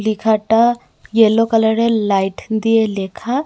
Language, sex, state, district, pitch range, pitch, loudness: Bengali, female, Tripura, West Tripura, 215-230 Hz, 225 Hz, -16 LUFS